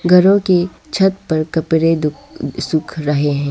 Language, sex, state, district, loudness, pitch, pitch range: Hindi, female, Arunachal Pradesh, Lower Dibang Valley, -16 LUFS, 160 Hz, 150-180 Hz